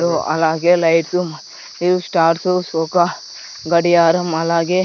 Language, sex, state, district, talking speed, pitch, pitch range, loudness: Telugu, male, Andhra Pradesh, Sri Satya Sai, 100 wpm, 170 Hz, 165-180 Hz, -16 LUFS